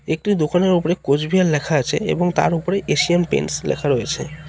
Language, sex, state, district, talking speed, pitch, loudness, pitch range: Bengali, male, West Bengal, Cooch Behar, 175 wpm, 175 Hz, -19 LUFS, 155-180 Hz